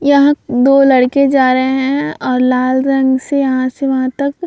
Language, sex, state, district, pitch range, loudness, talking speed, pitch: Hindi, female, Bihar, Vaishali, 255-280 Hz, -13 LUFS, 200 wpm, 265 Hz